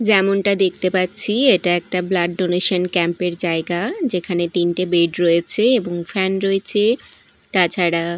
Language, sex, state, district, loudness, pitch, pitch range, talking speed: Bengali, female, Odisha, Malkangiri, -18 LUFS, 180 Hz, 175-195 Hz, 130 wpm